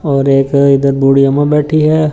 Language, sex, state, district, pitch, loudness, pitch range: Hindi, male, Delhi, New Delhi, 140 Hz, -10 LUFS, 135-150 Hz